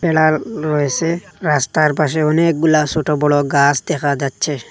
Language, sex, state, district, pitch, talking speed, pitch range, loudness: Bengali, male, Assam, Hailakandi, 155 Hz, 125 wpm, 145-160 Hz, -16 LUFS